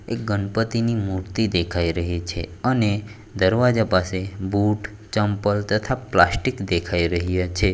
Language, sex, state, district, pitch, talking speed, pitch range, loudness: Gujarati, male, Gujarat, Valsad, 100 Hz, 125 wpm, 90-110 Hz, -22 LUFS